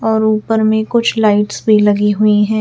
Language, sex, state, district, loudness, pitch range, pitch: Hindi, female, Chhattisgarh, Raipur, -13 LUFS, 210-220 Hz, 215 Hz